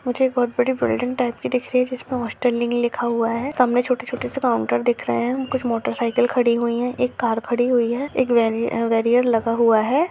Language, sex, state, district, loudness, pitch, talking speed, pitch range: Hindi, female, Chhattisgarh, Rajnandgaon, -21 LUFS, 245 Hz, 225 wpm, 235-250 Hz